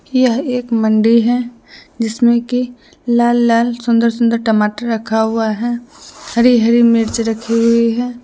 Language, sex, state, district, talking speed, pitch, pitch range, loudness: Hindi, female, Jharkhand, Deoghar, 145 wpm, 235 Hz, 230-240 Hz, -14 LUFS